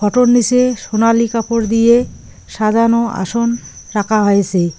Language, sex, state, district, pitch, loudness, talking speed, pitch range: Bengali, female, West Bengal, Cooch Behar, 230 Hz, -14 LUFS, 115 wpm, 210-235 Hz